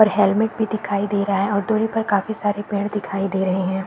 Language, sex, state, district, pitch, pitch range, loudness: Hindi, female, Uttar Pradesh, Deoria, 205 Hz, 195-215 Hz, -21 LUFS